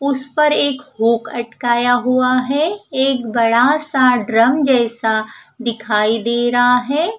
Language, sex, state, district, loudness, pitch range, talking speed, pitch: Hindi, female, Punjab, Fazilka, -16 LUFS, 230-270 Hz, 135 wpm, 245 Hz